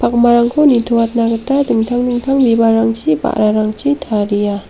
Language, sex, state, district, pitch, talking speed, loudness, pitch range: Garo, female, Meghalaya, South Garo Hills, 230 Hz, 100 wpm, -13 LUFS, 215-245 Hz